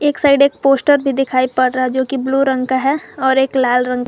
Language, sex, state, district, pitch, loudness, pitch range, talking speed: Hindi, female, Jharkhand, Garhwa, 265 Hz, -15 LUFS, 255-275 Hz, 280 wpm